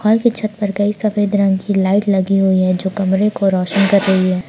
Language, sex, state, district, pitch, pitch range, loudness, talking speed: Hindi, female, Jharkhand, Palamu, 200 Hz, 190-205 Hz, -15 LUFS, 255 wpm